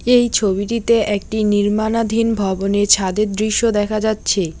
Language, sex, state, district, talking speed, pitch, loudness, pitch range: Bengali, female, West Bengal, Alipurduar, 115 wpm, 215 Hz, -17 LUFS, 200-225 Hz